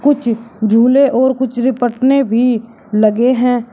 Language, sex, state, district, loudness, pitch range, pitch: Hindi, male, Uttar Pradesh, Shamli, -13 LUFS, 230-260 Hz, 245 Hz